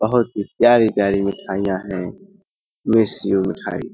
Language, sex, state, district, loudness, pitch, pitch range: Hindi, male, Uttar Pradesh, Hamirpur, -19 LUFS, 100 Hz, 95-120 Hz